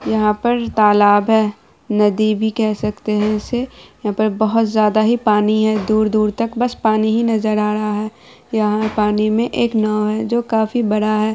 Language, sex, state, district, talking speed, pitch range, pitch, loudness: Hindi, female, Bihar, Araria, 185 wpm, 210-225 Hz, 215 Hz, -17 LUFS